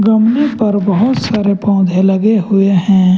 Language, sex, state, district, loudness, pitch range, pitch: Hindi, male, Jharkhand, Ranchi, -12 LUFS, 195-220 Hz, 200 Hz